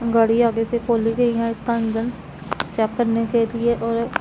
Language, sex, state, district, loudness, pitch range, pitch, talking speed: Hindi, female, Punjab, Pathankot, -21 LUFS, 225-235 Hz, 230 Hz, 185 wpm